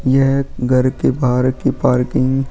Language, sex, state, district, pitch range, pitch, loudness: Hindi, male, Goa, North and South Goa, 125-135 Hz, 130 Hz, -16 LUFS